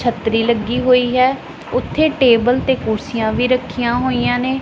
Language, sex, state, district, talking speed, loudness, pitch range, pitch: Punjabi, female, Punjab, Pathankot, 155 wpm, -16 LUFS, 235-255 Hz, 245 Hz